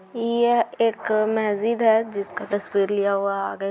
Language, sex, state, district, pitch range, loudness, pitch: Magahi, female, Bihar, Gaya, 200-230 Hz, -22 LUFS, 215 Hz